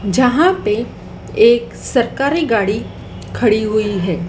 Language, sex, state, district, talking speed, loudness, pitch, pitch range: Hindi, female, Madhya Pradesh, Dhar, 110 wpm, -15 LUFS, 230 Hz, 210-330 Hz